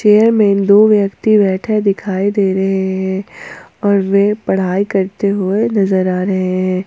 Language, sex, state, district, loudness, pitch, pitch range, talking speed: Hindi, female, Jharkhand, Ranchi, -14 LUFS, 195 Hz, 190-205 Hz, 155 wpm